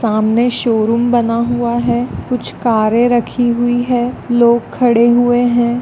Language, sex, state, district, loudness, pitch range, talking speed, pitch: Hindi, female, Andhra Pradesh, Chittoor, -14 LUFS, 235-245 Hz, 145 wpm, 240 Hz